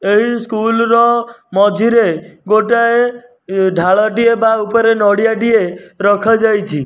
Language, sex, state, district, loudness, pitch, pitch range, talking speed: Odia, male, Odisha, Nuapada, -13 LUFS, 225 Hz, 205-230 Hz, 90 wpm